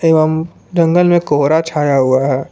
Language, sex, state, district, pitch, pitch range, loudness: Hindi, male, Jharkhand, Palamu, 160 Hz, 140-170 Hz, -13 LUFS